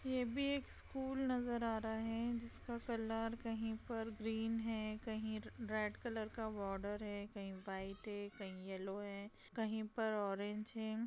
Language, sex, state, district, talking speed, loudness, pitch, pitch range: Hindi, female, Bihar, Lakhisarai, 160 wpm, -43 LUFS, 220 Hz, 205-230 Hz